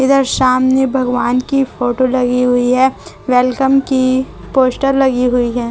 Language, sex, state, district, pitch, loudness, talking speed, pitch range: Hindi, female, Chhattisgarh, Raipur, 255 Hz, -14 LUFS, 145 wpm, 250-265 Hz